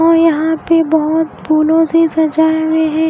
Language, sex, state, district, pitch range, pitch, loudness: Hindi, female, Odisha, Khordha, 315-325 Hz, 320 Hz, -13 LUFS